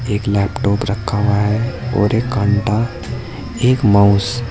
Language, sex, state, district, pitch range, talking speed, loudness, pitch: Hindi, male, Uttar Pradesh, Saharanpur, 100-115 Hz, 145 wpm, -16 LUFS, 105 Hz